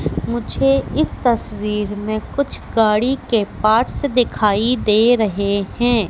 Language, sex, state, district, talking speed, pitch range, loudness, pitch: Hindi, female, Madhya Pradesh, Katni, 120 wpm, 205-240 Hz, -18 LUFS, 215 Hz